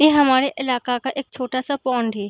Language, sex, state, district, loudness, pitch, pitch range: Hindi, female, Bihar, Sitamarhi, -21 LUFS, 260 Hz, 250-275 Hz